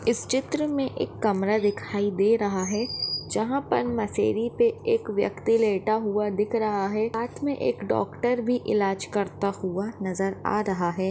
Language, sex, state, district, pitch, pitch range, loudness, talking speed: Hindi, female, Maharashtra, Nagpur, 215 Hz, 200-240 Hz, -26 LUFS, 175 wpm